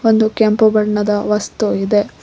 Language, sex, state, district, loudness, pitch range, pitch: Kannada, female, Karnataka, Koppal, -15 LUFS, 210-220 Hz, 210 Hz